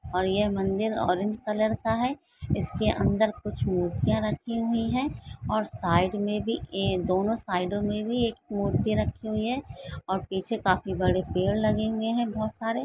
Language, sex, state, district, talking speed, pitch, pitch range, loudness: Hindi, female, Karnataka, Belgaum, 175 wpm, 210 Hz, 185-225 Hz, -27 LUFS